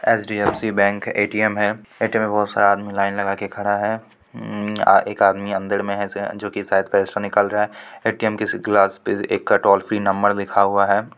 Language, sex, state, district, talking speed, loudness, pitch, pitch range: Hindi, female, Bihar, Supaul, 210 wpm, -19 LUFS, 100 Hz, 100-105 Hz